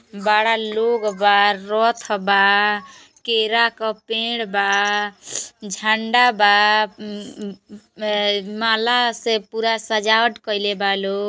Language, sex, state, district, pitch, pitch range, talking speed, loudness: Bhojpuri, female, Uttar Pradesh, Gorakhpur, 215 Hz, 205-225 Hz, 110 wpm, -18 LUFS